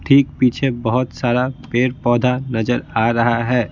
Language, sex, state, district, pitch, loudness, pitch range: Hindi, male, Bihar, Patna, 125 Hz, -18 LUFS, 120-130 Hz